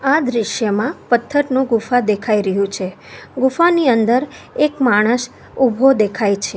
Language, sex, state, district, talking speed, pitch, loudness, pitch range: Gujarati, female, Gujarat, Valsad, 130 wpm, 240 Hz, -16 LUFS, 210-265 Hz